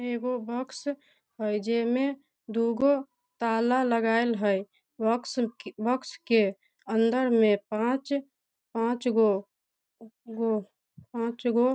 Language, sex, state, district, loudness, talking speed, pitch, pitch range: Maithili, female, Bihar, Samastipur, -28 LUFS, 100 wpm, 235 Hz, 225-255 Hz